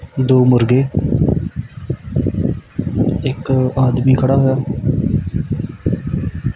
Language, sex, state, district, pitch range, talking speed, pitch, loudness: Punjabi, male, Punjab, Kapurthala, 130-135 Hz, 55 wpm, 130 Hz, -17 LUFS